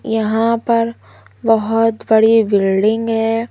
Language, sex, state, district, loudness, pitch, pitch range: Hindi, female, Madhya Pradesh, Umaria, -15 LUFS, 225 Hz, 220-225 Hz